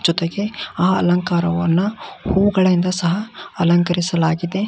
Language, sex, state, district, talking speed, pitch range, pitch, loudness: Kannada, male, Karnataka, Belgaum, 75 wpm, 170-195 Hz, 175 Hz, -18 LUFS